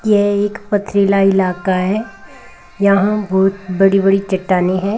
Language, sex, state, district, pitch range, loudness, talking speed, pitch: Hindi, female, Rajasthan, Bikaner, 190-205 Hz, -15 LUFS, 135 wpm, 195 Hz